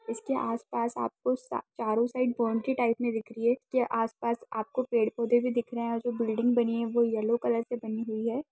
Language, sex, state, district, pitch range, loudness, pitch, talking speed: Hindi, female, Bihar, Madhepura, 230-245 Hz, -29 LUFS, 235 Hz, 220 wpm